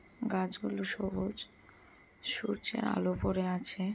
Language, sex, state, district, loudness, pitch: Bengali, female, West Bengal, Purulia, -35 LUFS, 185 Hz